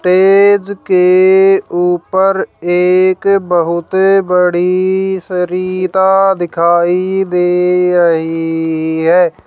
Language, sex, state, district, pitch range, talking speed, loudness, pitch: Hindi, female, Haryana, Jhajjar, 175-190 Hz, 70 wpm, -11 LUFS, 180 Hz